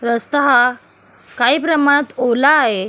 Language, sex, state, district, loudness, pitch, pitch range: Marathi, female, Maharashtra, Solapur, -14 LUFS, 260 Hz, 235-290 Hz